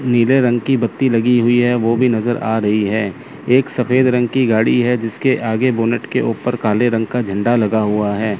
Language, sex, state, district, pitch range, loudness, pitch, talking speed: Hindi, male, Chandigarh, Chandigarh, 110-125 Hz, -16 LUFS, 120 Hz, 220 wpm